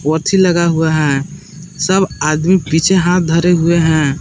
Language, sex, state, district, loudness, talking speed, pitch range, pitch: Hindi, male, Jharkhand, Palamu, -13 LUFS, 140 wpm, 155-180 Hz, 165 Hz